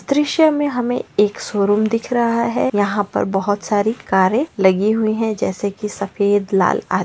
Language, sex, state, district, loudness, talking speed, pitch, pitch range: Hindi, female, Chhattisgarh, Bilaspur, -18 LUFS, 170 wpm, 210 Hz, 200-235 Hz